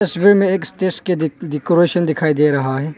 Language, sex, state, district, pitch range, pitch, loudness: Hindi, male, Arunachal Pradesh, Longding, 150-185 Hz, 170 Hz, -16 LUFS